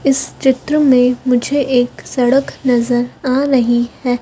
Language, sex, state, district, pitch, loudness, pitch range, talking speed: Hindi, female, Madhya Pradesh, Dhar, 255 Hz, -14 LUFS, 245-270 Hz, 140 wpm